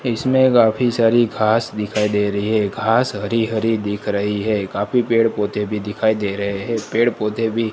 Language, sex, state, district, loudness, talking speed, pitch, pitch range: Hindi, male, Gujarat, Gandhinagar, -18 LUFS, 195 wpm, 110 Hz, 105-115 Hz